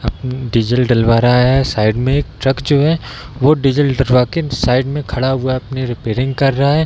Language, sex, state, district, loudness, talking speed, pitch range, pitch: Hindi, male, Bihar, East Champaran, -15 LUFS, 220 wpm, 125-140 Hz, 130 Hz